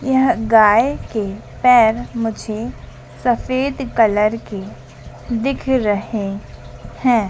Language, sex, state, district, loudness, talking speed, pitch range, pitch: Hindi, female, Madhya Pradesh, Dhar, -17 LUFS, 90 wpm, 210-250 Hz, 225 Hz